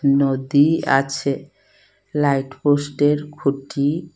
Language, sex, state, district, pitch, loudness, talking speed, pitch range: Bengali, female, Assam, Hailakandi, 140 Hz, -20 LUFS, 70 wpm, 135-150 Hz